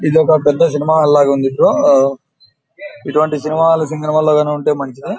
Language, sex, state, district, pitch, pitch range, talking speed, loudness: Telugu, male, Andhra Pradesh, Anantapur, 150 Hz, 145-160 Hz, 160 wpm, -13 LUFS